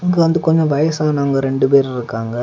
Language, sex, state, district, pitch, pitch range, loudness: Tamil, male, Tamil Nadu, Kanyakumari, 140 Hz, 135-160 Hz, -16 LUFS